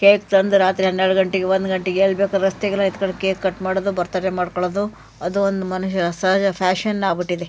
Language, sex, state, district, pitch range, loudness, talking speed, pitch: Kannada, female, Karnataka, Shimoga, 185-195 Hz, -19 LUFS, 175 wpm, 190 Hz